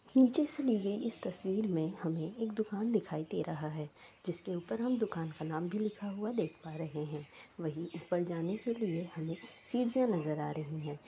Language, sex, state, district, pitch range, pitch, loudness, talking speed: Maithili, female, Bihar, Sitamarhi, 160-220 Hz, 175 Hz, -36 LUFS, 210 wpm